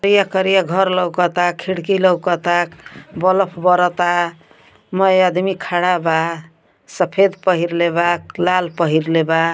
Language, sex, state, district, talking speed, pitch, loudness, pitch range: Bhojpuri, female, Uttar Pradesh, Ghazipur, 105 wpm, 180 Hz, -17 LUFS, 170-185 Hz